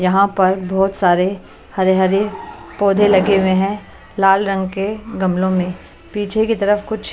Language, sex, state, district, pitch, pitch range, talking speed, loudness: Hindi, female, Maharashtra, Washim, 195 Hz, 190-205 Hz, 170 wpm, -16 LUFS